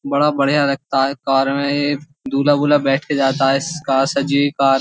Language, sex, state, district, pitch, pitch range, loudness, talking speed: Hindi, male, Uttar Pradesh, Jyotiba Phule Nagar, 140 Hz, 135-145 Hz, -17 LUFS, 225 wpm